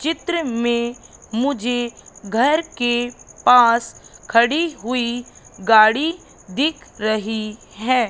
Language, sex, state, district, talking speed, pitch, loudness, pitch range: Hindi, female, Madhya Pradesh, Katni, 90 wpm, 240 Hz, -19 LUFS, 225-280 Hz